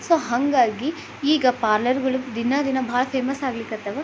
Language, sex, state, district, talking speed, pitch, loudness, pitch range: Kannada, female, Karnataka, Belgaum, 165 wpm, 260 Hz, -22 LUFS, 240-280 Hz